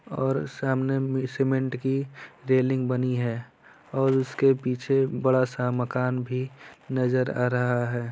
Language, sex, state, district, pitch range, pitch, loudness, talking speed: Hindi, male, Bihar, Lakhisarai, 125-135 Hz, 130 Hz, -26 LUFS, 140 wpm